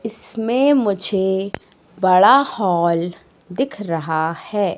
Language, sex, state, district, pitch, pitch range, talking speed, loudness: Hindi, female, Madhya Pradesh, Katni, 195 Hz, 170-225 Hz, 90 wpm, -18 LUFS